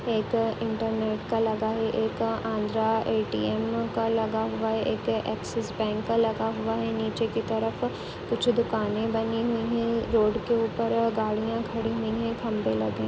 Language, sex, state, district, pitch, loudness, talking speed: Hindi, female, Uttar Pradesh, Deoria, 220 Hz, -27 LUFS, 185 wpm